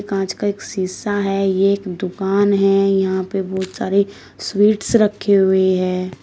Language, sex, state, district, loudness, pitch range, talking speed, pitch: Hindi, female, Uttar Pradesh, Shamli, -18 LUFS, 190-200 Hz, 165 wpm, 195 Hz